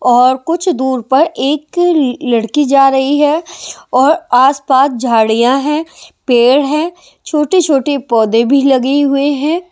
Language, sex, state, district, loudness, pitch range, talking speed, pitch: Hindi, male, Delhi, New Delhi, -12 LUFS, 255-300 Hz, 135 wpm, 275 Hz